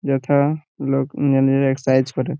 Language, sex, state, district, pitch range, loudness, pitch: Bengali, male, West Bengal, Purulia, 135-140 Hz, -19 LUFS, 135 Hz